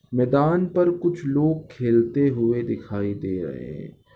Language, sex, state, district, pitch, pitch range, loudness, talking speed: Hindi, male, Chhattisgarh, Balrampur, 125 Hz, 110-160 Hz, -22 LUFS, 145 wpm